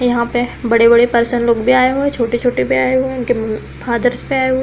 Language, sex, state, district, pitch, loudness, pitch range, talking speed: Hindi, female, Uttar Pradesh, Deoria, 240 Hz, -14 LUFS, 235-255 Hz, 235 wpm